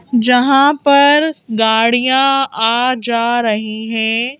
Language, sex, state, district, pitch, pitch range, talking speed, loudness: Hindi, female, Madhya Pradesh, Bhopal, 240 Hz, 225-270 Hz, 95 wpm, -13 LUFS